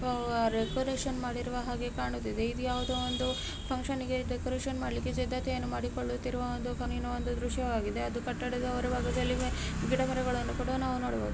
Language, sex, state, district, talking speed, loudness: Kannada, female, Karnataka, Mysore, 125 wpm, -33 LUFS